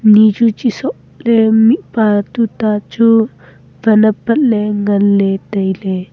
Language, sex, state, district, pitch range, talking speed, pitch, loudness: Wancho, female, Arunachal Pradesh, Longding, 200-225 Hz, 135 wpm, 215 Hz, -13 LUFS